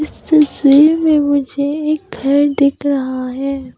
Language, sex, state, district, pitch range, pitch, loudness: Hindi, female, Arunachal Pradesh, Papum Pare, 275-300 Hz, 285 Hz, -14 LUFS